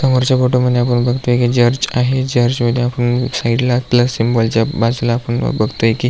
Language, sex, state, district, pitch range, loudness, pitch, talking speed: Marathi, male, Maharashtra, Aurangabad, 120-125 Hz, -15 LUFS, 120 Hz, 205 wpm